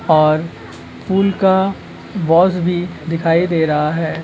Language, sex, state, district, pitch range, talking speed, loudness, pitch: Hindi, male, West Bengal, Purulia, 155-180 Hz, 125 wpm, -16 LUFS, 165 Hz